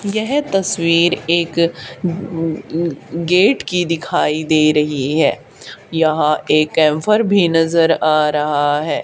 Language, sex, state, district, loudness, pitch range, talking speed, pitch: Hindi, female, Haryana, Charkhi Dadri, -16 LUFS, 155-170 Hz, 120 wpm, 165 Hz